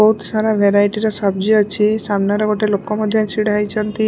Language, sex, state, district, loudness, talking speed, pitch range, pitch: Odia, female, Odisha, Malkangiri, -16 LUFS, 205 wpm, 205-215 Hz, 210 Hz